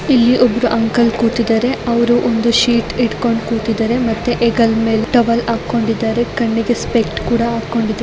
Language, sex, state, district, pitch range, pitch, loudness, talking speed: Kannada, female, Karnataka, Raichur, 225-240 Hz, 235 Hz, -15 LUFS, 125 wpm